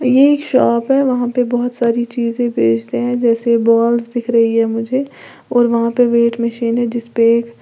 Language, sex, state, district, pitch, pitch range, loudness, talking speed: Hindi, female, Uttar Pradesh, Lalitpur, 235 Hz, 230-245 Hz, -15 LUFS, 195 wpm